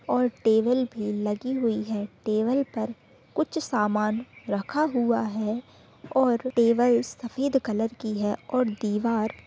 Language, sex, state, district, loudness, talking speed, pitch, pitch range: Hindi, female, Chhattisgarh, Bilaspur, -26 LUFS, 135 wpm, 230 Hz, 215-250 Hz